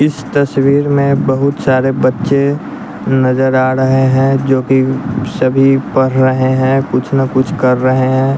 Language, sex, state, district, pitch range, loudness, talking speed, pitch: Hindi, male, Bihar, West Champaran, 130-140 Hz, -12 LUFS, 160 wpm, 135 Hz